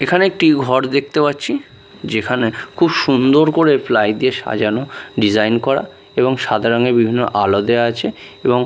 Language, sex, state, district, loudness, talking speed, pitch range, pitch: Bengali, male, Bihar, Katihar, -16 LUFS, 160 wpm, 115-145 Hz, 125 Hz